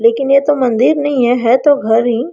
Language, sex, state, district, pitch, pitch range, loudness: Hindi, female, Jharkhand, Sahebganj, 265 Hz, 240-290 Hz, -12 LUFS